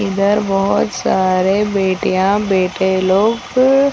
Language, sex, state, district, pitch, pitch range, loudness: Hindi, female, Chhattisgarh, Raigarh, 195 Hz, 190-210 Hz, -15 LUFS